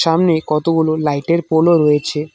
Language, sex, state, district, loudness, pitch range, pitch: Bengali, male, West Bengal, Cooch Behar, -15 LUFS, 150-165 Hz, 160 Hz